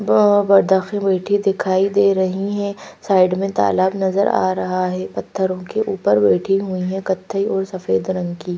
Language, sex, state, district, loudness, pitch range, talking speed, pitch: Hindi, female, Madhya Pradesh, Bhopal, -18 LUFS, 185-200 Hz, 175 wpm, 190 Hz